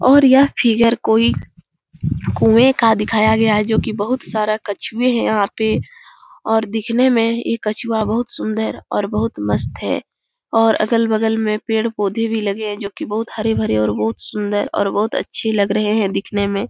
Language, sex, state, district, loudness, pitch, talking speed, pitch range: Hindi, female, Bihar, Jahanabad, -17 LUFS, 215 Hz, 195 wpm, 200-225 Hz